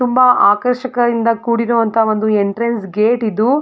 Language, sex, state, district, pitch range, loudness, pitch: Kannada, female, Karnataka, Mysore, 220-245 Hz, -14 LUFS, 230 Hz